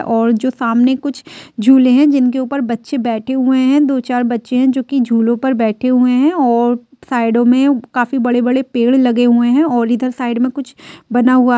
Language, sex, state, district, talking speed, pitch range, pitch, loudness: Hindi, female, Bihar, Sitamarhi, 190 wpm, 240-265 Hz, 250 Hz, -14 LUFS